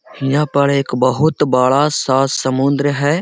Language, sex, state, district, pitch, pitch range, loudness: Hindi, male, Bihar, Gaya, 140 Hz, 130-145 Hz, -15 LUFS